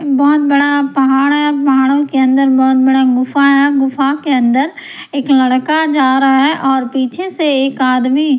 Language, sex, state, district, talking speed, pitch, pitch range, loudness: Hindi, female, Punjab, Pathankot, 180 wpm, 275 Hz, 265-285 Hz, -12 LUFS